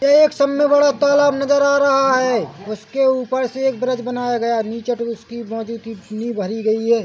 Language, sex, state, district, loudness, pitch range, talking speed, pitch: Hindi, male, Chhattisgarh, Bilaspur, -18 LUFS, 225-275 Hz, 210 wpm, 245 Hz